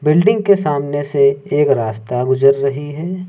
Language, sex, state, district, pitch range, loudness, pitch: Hindi, male, Uttar Pradesh, Lucknow, 135-160 Hz, -15 LUFS, 145 Hz